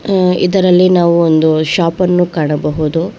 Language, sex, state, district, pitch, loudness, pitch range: Kannada, female, Karnataka, Bangalore, 170 Hz, -12 LUFS, 160-180 Hz